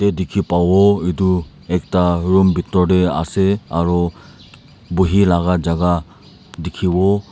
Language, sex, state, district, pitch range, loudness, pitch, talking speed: Nagamese, male, Nagaland, Dimapur, 85-95 Hz, -16 LUFS, 90 Hz, 105 wpm